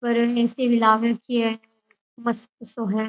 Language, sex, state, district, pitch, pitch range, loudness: Rajasthani, female, Rajasthan, Churu, 235 Hz, 225-235 Hz, -22 LUFS